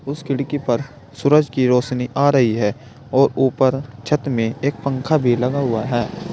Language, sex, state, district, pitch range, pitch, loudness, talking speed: Hindi, male, Uttar Pradesh, Saharanpur, 125-140 Hz, 130 Hz, -19 LUFS, 180 wpm